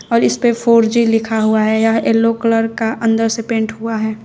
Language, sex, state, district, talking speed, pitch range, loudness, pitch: Hindi, female, Uttar Pradesh, Shamli, 225 wpm, 220-230 Hz, -15 LUFS, 225 Hz